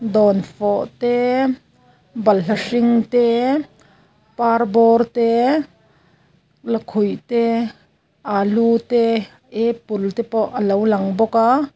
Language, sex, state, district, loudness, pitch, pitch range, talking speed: Mizo, female, Mizoram, Aizawl, -18 LUFS, 230 Hz, 205-235 Hz, 95 wpm